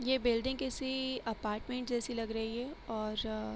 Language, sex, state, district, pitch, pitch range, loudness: Hindi, female, Uttar Pradesh, Hamirpur, 240 Hz, 225-260 Hz, -36 LUFS